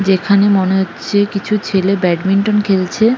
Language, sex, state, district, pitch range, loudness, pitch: Bengali, female, West Bengal, North 24 Parganas, 190-205 Hz, -14 LUFS, 195 Hz